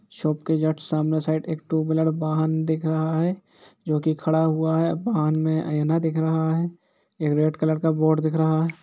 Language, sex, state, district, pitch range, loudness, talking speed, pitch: Hindi, male, Bihar, East Champaran, 155-160 Hz, -23 LUFS, 210 wpm, 160 Hz